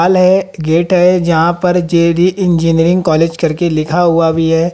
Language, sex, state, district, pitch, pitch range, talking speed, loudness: Hindi, female, Haryana, Jhajjar, 170 Hz, 165-180 Hz, 190 wpm, -11 LUFS